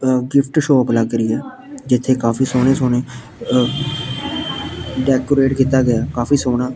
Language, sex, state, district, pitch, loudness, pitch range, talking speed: Punjabi, male, Punjab, Pathankot, 130 Hz, -17 LUFS, 125-135 Hz, 140 wpm